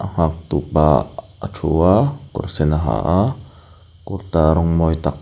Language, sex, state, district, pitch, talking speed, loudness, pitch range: Mizo, male, Mizoram, Aizawl, 80 Hz, 185 wpm, -18 LUFS, 75-95 Hz